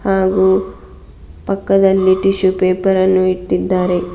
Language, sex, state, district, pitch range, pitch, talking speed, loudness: Kannada, female, Karnataka, Bidar, 180-190 Hz, 185 Hz, 85 wpm, -14 LUFS